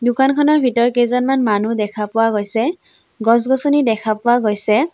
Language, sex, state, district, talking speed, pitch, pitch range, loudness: Assamese, female, Assam, Sonitpur, 135 wpm, 235 Hz, 215-265 Hz, -16 LUFS